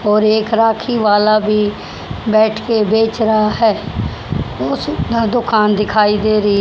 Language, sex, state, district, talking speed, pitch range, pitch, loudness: Hindi, female, Haryana, Jhajjar, 145 wpm, 210-225 Hz, 215 Hz, -15 LUFS